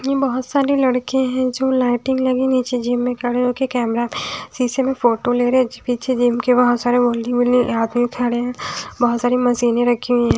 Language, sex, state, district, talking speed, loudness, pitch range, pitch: Hindi, female, Odisha, Nuapada, 195 wpm, -18 LUFS, 245-255 Hz, 245 Hz